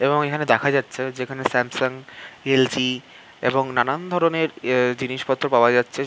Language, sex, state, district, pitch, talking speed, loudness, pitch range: Bengali, male, West Bengal, Malda, 130 Hz, 160 wpm, -21 LUFS, 125-140 Hz